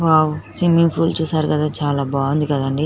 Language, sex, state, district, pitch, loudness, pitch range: Telugu, female, Telangana, Nalgonda, 150 Hz, -18 LUFS, 145-160 Hz